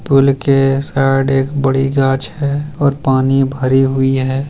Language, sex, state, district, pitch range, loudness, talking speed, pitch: Hindi, male, Bihar, Jamui, 135-140 Hz, -14 LUFS, 160 wpm, 135 Hz